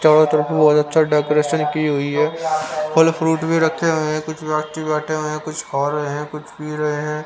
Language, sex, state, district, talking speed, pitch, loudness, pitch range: Hindi, male, Haryana, Rohtak, 225 wpm, 155 Hz, -19 LUFS, 150-155 Hz